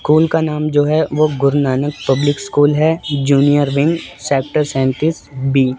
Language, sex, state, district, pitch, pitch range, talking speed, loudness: Hindi, male, Chandigarh, Chandigarh, 145 Hz, 140-155 Hz, 175 wpm, -15 LUFS